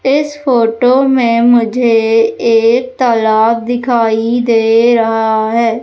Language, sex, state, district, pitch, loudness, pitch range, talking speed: Hindi, female, Madhya Pradesh, Umaria, 230 Hz, -11 LUFS, 225-245 Hz, 105 wpm